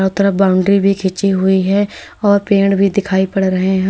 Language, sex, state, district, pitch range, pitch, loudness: Hindi, female, Uttar Pradesh, Lalitpur, 190-200 Hz, 195 Hz, -14 LUFS